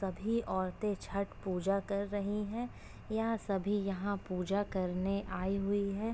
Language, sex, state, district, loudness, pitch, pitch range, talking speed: Hindi, female, Uttar Pradesh, Etah, -36 LUFS, 200 Hz, 190-205 Hz, 155 wpm